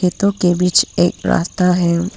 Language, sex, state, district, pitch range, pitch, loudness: Hindi, female, Arunachal Pradesh, Papum Pare, 170-180 Hz, 180 Hz, -15 LUFS